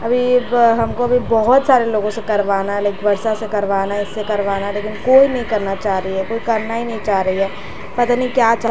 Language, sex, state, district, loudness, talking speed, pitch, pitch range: Hindi, female, Bihar, Patna, -17 LUFS, 250 wpm, 220 Hz, 200-235 Hz